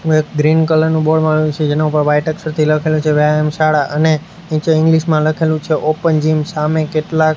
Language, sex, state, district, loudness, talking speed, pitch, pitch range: Gujarati, male, Gujarat, Gandhinagar, -14 LUFS, 210 wpm, 155 Hz, 155-160 Hz